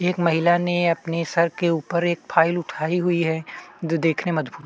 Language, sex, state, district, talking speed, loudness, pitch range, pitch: Hindi, male, Chhattisgarh, Kabirdham, 220 wpm, -22 LUFS, 165-175 Hz, 170 Hz